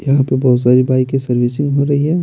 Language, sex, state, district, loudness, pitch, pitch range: Hindi, male, Bihar, Patna, -14 LUFS, 135 Hz, 125-140 Hz